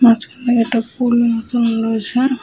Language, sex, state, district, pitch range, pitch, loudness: Bengali, female, Jharkhand, Sahebganj, 230-245 Hz, 235 Hz, -16 LUFS